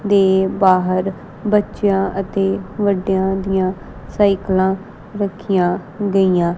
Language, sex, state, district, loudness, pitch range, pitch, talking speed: Punjabi, female, Punjab, Kapurthala, -18 LUFS, 185-200 Hz, 195 Hz, 90 wpm